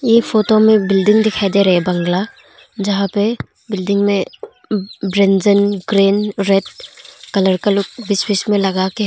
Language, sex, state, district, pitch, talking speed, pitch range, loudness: Hindi, female, Arunachal Pradesh, Longding, 200 Hz, 150 wpm, 195-215 Hz, -15 LUFS